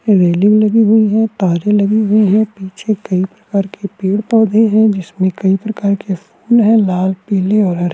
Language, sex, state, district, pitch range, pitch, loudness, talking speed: Hindi, male, Uttarakhand, Tehri Garhwal, 190-215 Hz, 205 Hz, -13 LUFS, 180 wpm